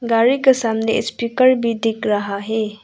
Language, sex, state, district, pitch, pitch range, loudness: Hindi, female, Arunachal Pradesh, Lower Dibang Valley, 225 Hz, 220-235 Hz, -18 LUFS